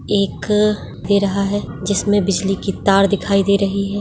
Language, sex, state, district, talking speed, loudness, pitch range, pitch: Hindi, male, Bihar, Darbhanga, 165 wpm, -17 LUFS, 195-205 Hz, 200 Hz